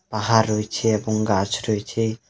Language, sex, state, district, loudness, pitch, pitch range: Bengali, male, West Bengal, Alipurduar, -22 LUFS, 110 Hz, 105-115 Hz